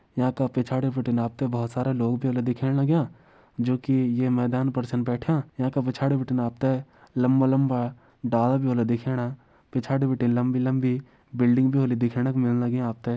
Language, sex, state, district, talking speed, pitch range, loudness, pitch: Garhwali, male, Uttarakhand, Uttarkashi, 180 wpm, 120-130 Hz, -25 LUFS, 125 Hz